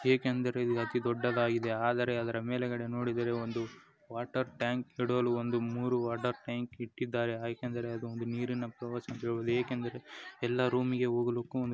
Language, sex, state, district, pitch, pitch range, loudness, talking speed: Kannada, male, Karnataka, Chamarajanagar, 120 Hz, 120-125 Hz, -34 LUFS, 85 wpm